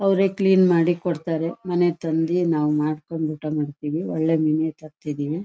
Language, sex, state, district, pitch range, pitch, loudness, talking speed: Kannada, female, Karnataka, Shimoga, 155-175 Hz, 160 Hz, -22 LUFS, 130 wpm